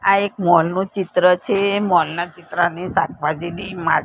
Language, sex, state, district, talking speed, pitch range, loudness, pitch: Gujarati, female, Gujarat, Gandhinagar, 165 wpm, 170-195 Hz, -19 LUFS, 180 Hz